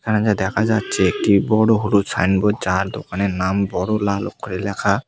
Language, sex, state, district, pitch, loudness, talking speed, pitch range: Bengali, male, West Bengal, Cooch Behar, 100 Hz, -19 LUFS, 175 wpm, 95-110 Hz